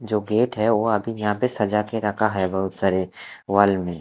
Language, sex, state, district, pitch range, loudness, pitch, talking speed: Hindi, male, Odisha, Khordha, 95-110 Hz, -22 LUFS, 105 Hz, 210 wpm